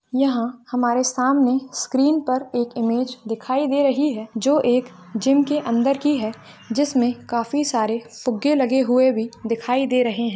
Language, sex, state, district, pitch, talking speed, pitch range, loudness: Hindi, female, Chhattisgarh, Bilaspur, 250 Hz, 175 wpm, 235-275 Hz, -21 LUFS